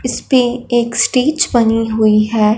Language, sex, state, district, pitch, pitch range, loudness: Hindi, female, Punjab, Fazilka, 235 Hz, 220-250 Hz, -13 LUFS